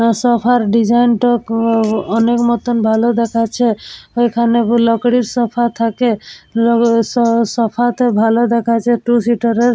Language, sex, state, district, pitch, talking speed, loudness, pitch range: Bengali, female, West Bengal, Purulia, 235 Hz, 115 wpm, -14 LUFS, 230-240 Hz